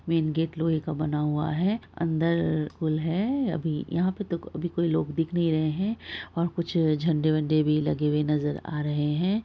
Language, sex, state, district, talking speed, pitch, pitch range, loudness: Hindi, female, Bihar, Araria, 210 wpm, 160 Hz, 155-170 Hz, -27 LUFS